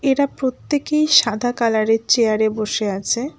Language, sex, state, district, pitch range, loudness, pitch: Bengali, female, West Bengal, Alipurduar, 220-275 Hz, -18 LUFS, 240 Hz